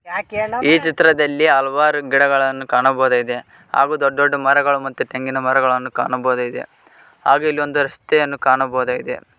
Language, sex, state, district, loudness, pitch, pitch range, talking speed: Kannada, male, Karnataka, Koppal, -17 LUFS, 140 Hz, 130-150 Hz, 115 wpm